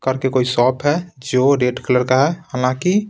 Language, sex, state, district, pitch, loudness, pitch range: Hindi, male, Bihar, Patna, 130 Hz, -17 LUFS, 125-145 Hz